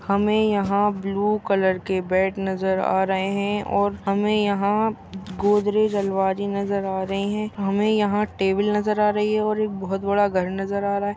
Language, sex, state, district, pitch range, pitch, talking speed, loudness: Hindi, male, Chhattisgarh, Bastar, 195-210 Hz, 200 Hz, 190 wpm, -22 LUFS